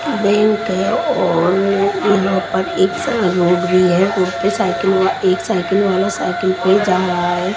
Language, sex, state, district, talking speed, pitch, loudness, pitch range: Hindi, female, Maharashtra, Mumbai Suburban, 150 wpm, 185 Hz, -15 LUFS, 180-200 Hz